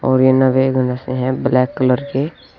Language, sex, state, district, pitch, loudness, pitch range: Hindi, male, Uttar Pradesh, Shamli, 130 Hz, -16 LUFS, 130-135 Hz